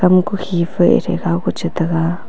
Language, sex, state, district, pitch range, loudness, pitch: Wancho, female, Arunachal Pradesh, Longding, 165-185 Hz, -17 LUFS, 170 Hz